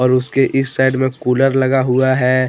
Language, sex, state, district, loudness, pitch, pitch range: Hindi, male, Jharkhand, Deoghar, -15 LUFS, 130 Hz, 130-135 Hz